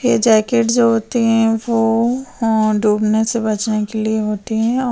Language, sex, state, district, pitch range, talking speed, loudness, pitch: Hindi, female, Bihar, Madhepura, 215-235 Hz, 185 wpm, -16 LUFS, 225 Hz